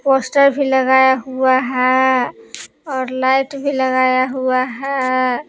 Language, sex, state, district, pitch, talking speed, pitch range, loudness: Hindi, female, Jharkhand, Palamu, 260 Hz, 120 wpm, 255-270 Hz, -16 LUFS